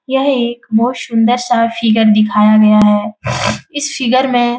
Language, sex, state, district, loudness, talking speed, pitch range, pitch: Hindi, female, Bihar, Jahanabad, -12 LUFS, 170 wpm, 215-250 Hz, 235 Hz